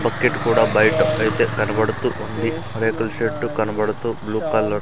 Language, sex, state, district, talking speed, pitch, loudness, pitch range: Telugu, male, Andhra Pradesh, Sri Satya Sai, 150 wpm, 115 Hz, -20 LUFS, 110-115 Hz